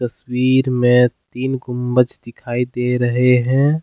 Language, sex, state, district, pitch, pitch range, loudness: Hindi, male, Jharkhand, Deoghar, 125 Hz, 125-130 Hz, -17 LUFS